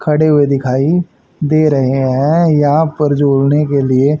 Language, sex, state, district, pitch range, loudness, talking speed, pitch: Hindi, male, Haryana, Jhajjar, 135-155 Hz, -12 LUFS, 155 wpm, 145 Hz